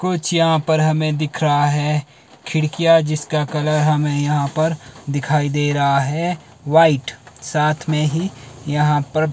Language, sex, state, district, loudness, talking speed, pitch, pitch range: Hindi, male, Himachal Pradesh, Shimla, -18 LUFS, 150 wpm, 150 Hz, 145-155 Hz